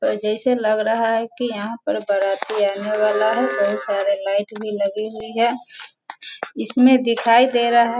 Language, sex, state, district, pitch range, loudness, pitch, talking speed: Hindi, female, Bihar, Sitamarhi, 205-235 Hz, -19 LUFS, 220 Hz, 185 wpm